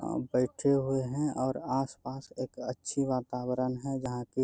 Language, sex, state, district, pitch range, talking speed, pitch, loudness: Hindi, male, Bihar, Bhagalpur, 125-135 Hz, 160 wpm, 130 Hz, -32 LUFS